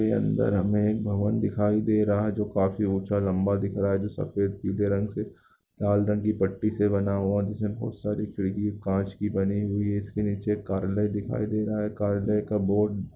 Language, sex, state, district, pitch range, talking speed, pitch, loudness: Hindi, male, Bihar, Lakhisarai, 100-105 Hz, 220 wpm, 105 Hz, -27 LUFS